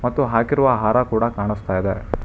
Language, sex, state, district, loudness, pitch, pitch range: Kannada, male, Karnataka, Bangalore, -19 LUFS, 115 Hz, 105-125 Hz